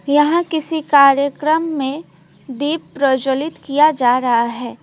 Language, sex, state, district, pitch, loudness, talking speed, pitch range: Hindi, female, West Bengal, Alipurduar, 285 Hz, -16 LUFS, 125 wpm, 265-310 Hz